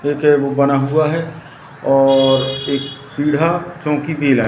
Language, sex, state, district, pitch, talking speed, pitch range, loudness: Hindi, male, Madhya Pradesh, Katni, 145 Hz, 145 wpm, 135-155 Hz, -16 LUFS